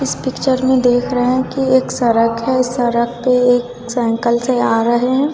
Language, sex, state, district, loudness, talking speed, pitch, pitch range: Hindi, female, Bihar, West Champaran, -15 LUFS, 200 wpm, 245 Hz, 240-260 Hz